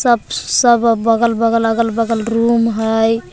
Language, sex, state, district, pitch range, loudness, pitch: Magahi, female, Jharkhand, Palamu, 225-230 Hz, -14 LUFS, 230 Hz